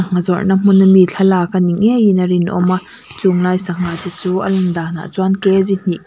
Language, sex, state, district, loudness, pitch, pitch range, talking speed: Mizo, female, Mizoram, Aizawl, -14 LUFS, 185 Hz, 180-190 Hz, 190 wpm